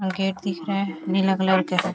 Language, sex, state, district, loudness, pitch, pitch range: Hindi, female, Chhattisgarh, Rajnandgaon, -23 LUFS, 190 Hz, 185-195 Hz